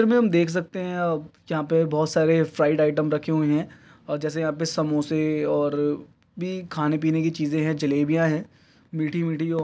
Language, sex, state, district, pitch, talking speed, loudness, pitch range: Hindi, male, Uttar Pradesh, Deoria, 155 Hz, 210 wpm, -24 LUFS, 150-165 Hz